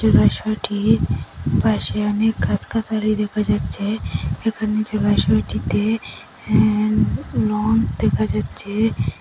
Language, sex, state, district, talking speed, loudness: Bengali, female, Assam, Hailakandi, 80 wpm, -20 LUFS